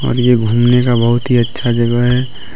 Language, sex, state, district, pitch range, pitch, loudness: Hindi, male, Jharkhand, Deoghar, 120-125 Hz, 120 Hz, -13 LUFS